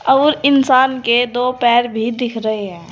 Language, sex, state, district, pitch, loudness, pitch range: Hindi, female, Uttar Pradesh, Saharanpur, 245 Hz, -15 LUFS, 230-260 Hz